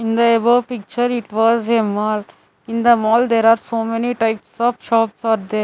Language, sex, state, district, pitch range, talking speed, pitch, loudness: English, female, Chandigarh, Chandigarh, 225-235 Hz, 210 wpm, 230 Hz, -17 LUFS